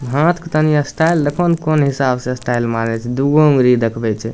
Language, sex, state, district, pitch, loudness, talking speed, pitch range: Maithili, male, Bihar, Samastipur, 140 Hz, -15 LUFS, 220 wpm, 120-155 Hz